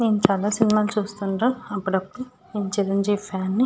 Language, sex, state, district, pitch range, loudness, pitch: Telugu, female, Andhra Pradesh, Srikakulam, 195-220 Hz, -23 LUFS, 205 Hz